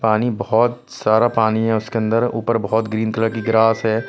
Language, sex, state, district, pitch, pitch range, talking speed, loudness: Hindi, male, Punjab, Pathankot, 110 Hz, 110-115 Hz, 205 wpm, -18 LUFS